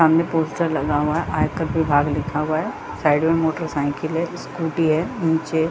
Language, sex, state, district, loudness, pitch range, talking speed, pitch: Hindi, female, Jharkhand, Jamtara, -21 LUFS, 150-165 Hz, 170 wpm, 160 Hz